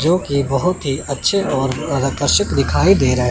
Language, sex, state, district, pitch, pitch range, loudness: Hindi, male, Chandigarh, Chandigarh, 135 Hz, 130-160 Hz, -17 LUFS